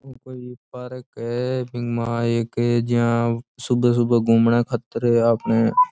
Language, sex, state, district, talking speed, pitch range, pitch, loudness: Rajasthani, male, Rajasthan, Churu, 130 wpm, 115-125 Hz, 120 Hz, -21 LUFS